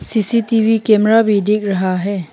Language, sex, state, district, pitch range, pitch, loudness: Hindi, female, Arunachal Pradesh, Papum Pare, 200-225 Hz, 215 Hz, -14 LUFS